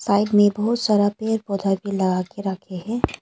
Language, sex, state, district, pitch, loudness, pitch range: Hindi, female, Arunachal Pradesh, Longding, 205 Hz, -21 LUFS, 195-215 Hz